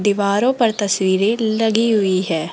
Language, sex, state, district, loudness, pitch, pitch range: Hindi, female, Rajasthan, Jaipur, -17 LUFS, 205 Hz, 190-225 Hz